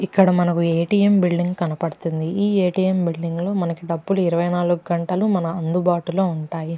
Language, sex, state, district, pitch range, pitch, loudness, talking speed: Telugu, female, Andhra Pradesh, Krishna, 170-185 Hz, 175 Hz, -20 LUFS, 185 wpm